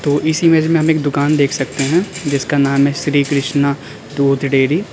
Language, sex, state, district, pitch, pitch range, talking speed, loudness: Hindi, male, Uttar Pradesh, Lalitpur, 145 Hz, 140-155 Hz, 205 wpm, -15 LUFS